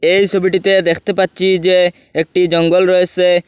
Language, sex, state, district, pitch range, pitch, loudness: Bengali, male, Assam, Hailakandi, 175-190 Hz, 185 Hz, -13 LUFS